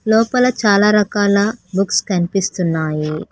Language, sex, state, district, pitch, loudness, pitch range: Telugu, female, Telangana, Hyderabad, 200 Hz, -16 LUFS, 180-215 Hz